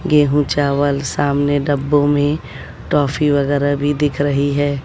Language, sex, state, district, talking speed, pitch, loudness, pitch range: Hindi, female, Bihar, West Champaran, 135 wpm, 145 Hz, -16 LUFS, 140-145 Hz